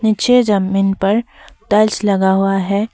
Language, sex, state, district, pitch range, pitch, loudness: Hindi, female, Assam, Sonitpur, 195-220 Hz, 205 Hz, -15 LUFS